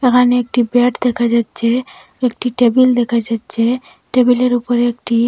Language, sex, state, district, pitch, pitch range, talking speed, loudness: Bengali, female, Assam, Hailakandi, 245 Hz, 235-250 Hz, 135 wpm, -15 LUFS